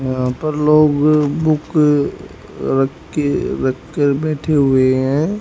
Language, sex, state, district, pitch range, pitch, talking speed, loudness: Hindi, male, Haryana, Rohtak, 135-155 Hz, 150 Hz, 110 wpm, -16 LUFS